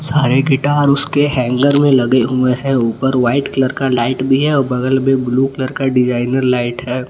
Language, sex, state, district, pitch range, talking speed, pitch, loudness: Hindi, male, Jharkhand, Palamu, 125-140 Hz, 205 wpm, 130 Hz, -14 LUFS